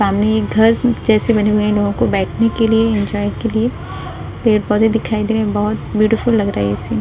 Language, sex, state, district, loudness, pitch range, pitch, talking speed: Hindi, female, Uttar Pradesh, Budaun, -15 LUFS, 205-225 Hz, 215 Hz, 250 wpm